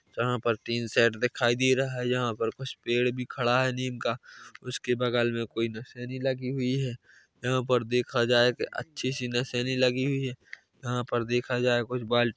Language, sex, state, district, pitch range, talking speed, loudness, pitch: Hindi, male, Chhattisgarh, Bilaspur, 120-130 Hz, 195 wpm, -28 LUFS, 125 Hz